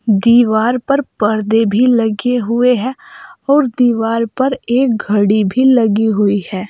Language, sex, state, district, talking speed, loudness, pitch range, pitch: Hindi, female, Uttar Pradesh, Saharanpur, 145 wpm, -13 LUFS, 215-250 Hz, 235 Hz